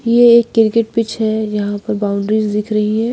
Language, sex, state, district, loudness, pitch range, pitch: Hindi, female, Bihar, Patna, -15 LUFS, 210-230 Hz, 220 Hz